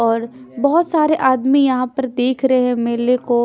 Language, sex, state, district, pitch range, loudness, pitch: Hindi, female, Punjab, Pathankot, 245-270 Hz, -16 LUFS, 255 Hz